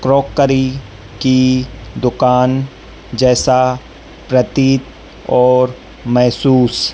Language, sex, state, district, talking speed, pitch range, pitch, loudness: Hindi, male, Madhya Pradesh, Dhar, 60 wpm, 125-130 Hz, 130 Hz, -13 LUFS